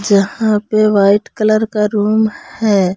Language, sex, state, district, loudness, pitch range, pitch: Hindi, female, Jharkhand, Palamu, -14 LUFS, 200-215 Hz, 210 Hz